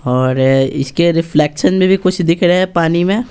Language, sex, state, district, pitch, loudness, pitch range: Hindi, male, Bihar, Patna, 165 Hz, -13 LUFS, 135-185 Hz